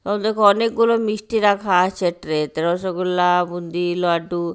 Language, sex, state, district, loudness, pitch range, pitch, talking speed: Bengali, female, Odisha, Nuapada, -19 LUFS, 175-205 Hz, 180 Hz, 145 wpm